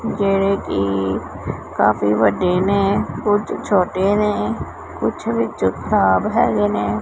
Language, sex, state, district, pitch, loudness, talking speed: Punjabi, male, Punjab, Pathankot, 110 Hz, -18 LUFS, 110 wpm